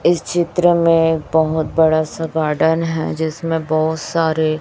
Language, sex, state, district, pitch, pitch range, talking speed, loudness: Hindi, female, Chhattisgarh, Raipur, 160 Hz, 160-165 Hz, 145 wpm, -17 LUFS